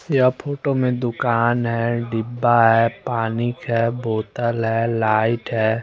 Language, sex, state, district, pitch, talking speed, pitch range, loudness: Hindi, male, Chandigarh, Chandigarh, 115 Hz, 135 wpm, 115-120 Hz, -20 LUFS